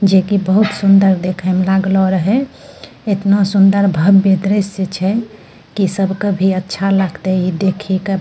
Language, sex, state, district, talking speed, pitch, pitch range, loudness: Angika, female, Bihar, Bhagalpur, 160 wpm, 195 Hz, 190-200 Hz, -14 LUFS